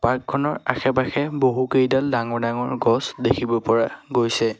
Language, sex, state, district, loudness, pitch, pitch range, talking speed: Assamese, male, Assam, Sonitpur, -21 LUFS, 125 Hz, 115-130 Hz, 155 wpm